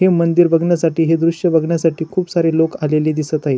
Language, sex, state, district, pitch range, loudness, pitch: Marathi, male, Maharashtra, Chandrapur, 160-170 Hz, -16 LUFS, 165 Hz